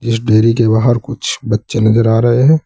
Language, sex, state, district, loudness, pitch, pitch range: Hindi, male, Uttar Pradesh, Saharanpur, -13 LUFS, 115 Hz, 110-120 Hz